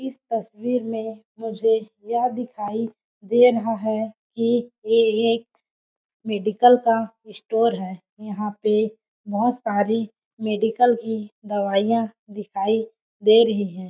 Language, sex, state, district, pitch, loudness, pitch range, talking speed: Hindi, female, Chhattisgarh, Balrampur, 220 Hz, -22 LUFS, 210-230 Hz, 120 wpm